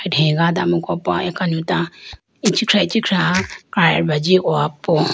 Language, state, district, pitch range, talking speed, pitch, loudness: Idu Mishmi, Arunachal Pradesh, Lower Dibang Valley, 165-185 Hz, 115 wpm, 175 Hz, -17 LUFS